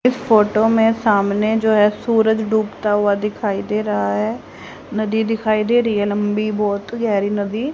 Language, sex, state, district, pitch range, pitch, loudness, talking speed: Hindi, female, Haryana, Jhajjar, 205-225 Hz, 215 Hz, -18 LUFS, 170 wpm